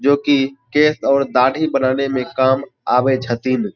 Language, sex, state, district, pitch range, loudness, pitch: Maithili, male, Bihar, Supaul, 130-140 Hz, -17 LUFS, 135 Hz